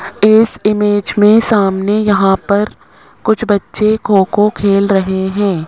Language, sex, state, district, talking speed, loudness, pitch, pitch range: Hindi, male, Rajasthan, Jaipur, 135 wpm, -12 LUFS, 205 Hz, 195-215 Hz